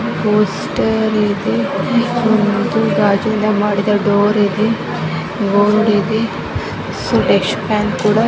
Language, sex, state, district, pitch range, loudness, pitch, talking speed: Kannada, female, Karnataka, Bijapur, 205-220 Hz, -15 LUFS, 210 Hz, 75 wpm